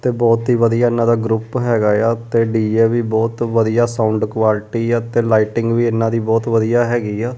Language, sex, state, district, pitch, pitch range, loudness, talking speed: Punjabi, male, Punjab, Kapurthala, 115 Hz, 110-120 Hz, -16 LUFS, 210 wpm